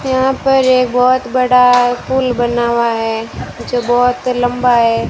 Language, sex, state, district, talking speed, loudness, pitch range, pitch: Hindi, female, Rajasthan, Bikaner, 155 wpm, -13 LUFS, 240-255 Hz, 245 Hz